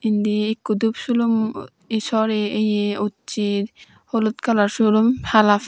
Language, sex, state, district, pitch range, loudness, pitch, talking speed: Chakma, female, Tripura, Dhalai, 210-225 Hz, -20 LUFS, 215 Hz, 125 wpm